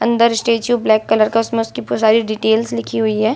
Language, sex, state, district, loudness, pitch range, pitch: Hindi, female, Bihar, Saran, -16 LUFS, 220-230 Hz, 225 Hz